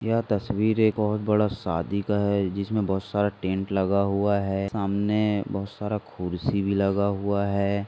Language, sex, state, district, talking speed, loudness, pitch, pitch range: Hindi, male, Maharashtra, Dhule, 175 wpm, -25 LUFS, 100 Hz, 100-105 Hz